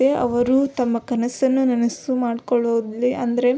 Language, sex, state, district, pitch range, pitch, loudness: Kannada, female, Karnataka, Belgaum, 235-260 Hz, 245 Hz, -20 LUFS